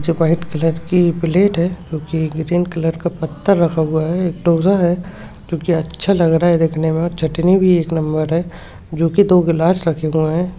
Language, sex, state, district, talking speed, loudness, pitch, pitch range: Hindi, male, West Bengal, Jhargram, 220 wpm, -16 LUFS, 170 Hz, 160-175 Hz